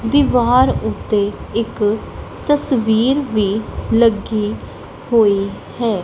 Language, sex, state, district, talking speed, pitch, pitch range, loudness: Punjabi, female, Punjab, Kapurthala, 80 wpm, 225 Hz, 205-245 Hz, -17 LUFS